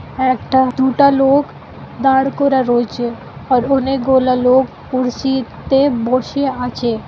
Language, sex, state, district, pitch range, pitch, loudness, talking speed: Bengali, female, West Bengal, Malda, 250-270 Hz, 260 Hz, -15 LUFS, 110 wpm